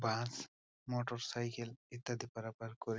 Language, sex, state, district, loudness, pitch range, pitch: Bengali, male, West Bengal, Purulia, -43 LUFS, 115-120 Hz, 120 Hz